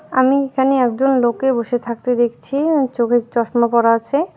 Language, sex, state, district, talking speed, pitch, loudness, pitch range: Bengali, female, West Bengal, Alipurduar, 165 wpm, 245 Hz, -17 LUFS, 235-270 Hz